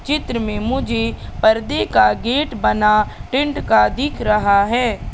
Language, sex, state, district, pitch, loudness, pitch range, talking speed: Hindi, female, Madhya Pradesh, Katni, 220 Hz, -17 LUFS, 205-260 Hz, 140 wpm